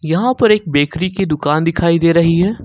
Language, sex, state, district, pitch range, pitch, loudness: Hindi, male, Jharkhand, Ranchi, 160-190 Hz, 170 Hz, -14 LUFS